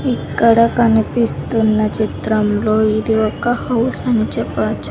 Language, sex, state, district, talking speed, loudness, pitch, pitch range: Telugu, female, Andhra Pradesh, Sri Satya Sai, 100 wpm, -16 LUFS, 220 Hz, 215-235 Hz